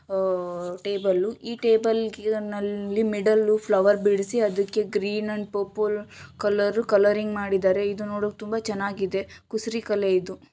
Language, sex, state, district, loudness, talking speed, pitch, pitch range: Kannada, female, Karnataka, Shimoga, -25 LUFS, 120 wpm, 205 Hz, 200-215 Hz